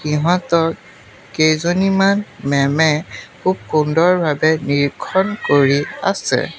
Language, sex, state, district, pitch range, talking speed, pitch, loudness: Assamese, male, Assam, Sonitpur, 150-180 Hz, 75 wpm, 160 Hz, -16 LUFS